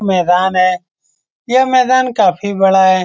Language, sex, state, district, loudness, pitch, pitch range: Hindi, male, Bihar, Saran, -12 LUFS, 190 Hz, 180-230 Hz